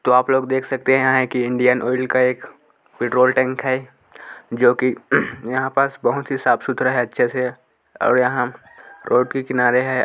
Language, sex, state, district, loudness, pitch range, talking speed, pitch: Hindi, male, Chhattisgarh, Korba, -19 LUFS, 125-130 Hz, 185 wpm, 130 Hz